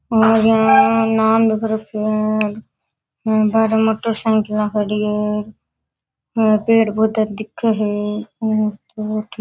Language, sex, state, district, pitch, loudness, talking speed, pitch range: Rajasthani, female, Rajasthan, Nagaur, 215 Hz, -17 LUFS, 95 wpm, 210-220 Hz